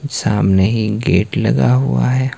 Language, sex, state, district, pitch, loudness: Hindi, male, Himachal Pradesh, Shimla, 105 Hz, -15 LUFS